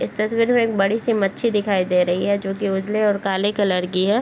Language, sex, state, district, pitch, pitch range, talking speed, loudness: Hindi, female, Bihar, Bhagalpur, 200 Hz, 195-215 Hz, 270 wpm, -20 LUFS